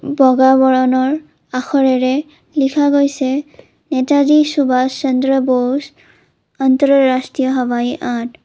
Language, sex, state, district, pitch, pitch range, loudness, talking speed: Assamese, female, Assam, Kamrup Metropolitan, 265 Hz, 255-280 Hz, -15 LUFS, 85 wpm